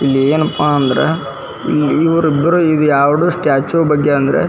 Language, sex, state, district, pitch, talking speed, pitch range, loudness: Kannada, male, Karnataka, Dharwad, 150 Hz, 145 wpm, 140-160 Hz, -13 LUFS